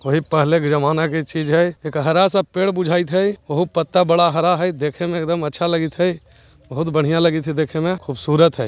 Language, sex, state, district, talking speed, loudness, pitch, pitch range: Hindi, male, Bihar, Jahanabad, 215 wpm, -18 LUFS, 165 Hz, 155-175 Hz